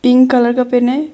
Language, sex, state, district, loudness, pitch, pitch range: Hindi, female, Arunachal Pradesh, Longding, -12 LUFS, 250 Hz, 245-260 Hz